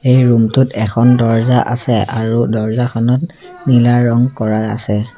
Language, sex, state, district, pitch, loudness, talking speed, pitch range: Assamese, male, Assam, Sonitpur, 120 Hz, -13 LUFS, 140 wpm, 115-125 Hz